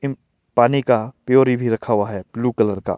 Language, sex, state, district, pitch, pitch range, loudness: Hindi, male, Himachal Pradesh, Shimla, 120 Hz, 110-130 Hz, -19 LUFS